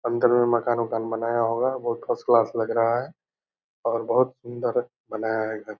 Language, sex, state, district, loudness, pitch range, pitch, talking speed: Angika, male, Bihar, Purnia, -24 LUFS, 115-120 Hz, 120 Hz, 185 wpm